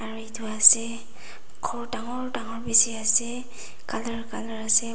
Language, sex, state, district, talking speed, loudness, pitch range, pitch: Nagamese, female, Nagaland, Dimapur, 135 wpm, -22 LUFS, 225-235 Hz, 230 Hz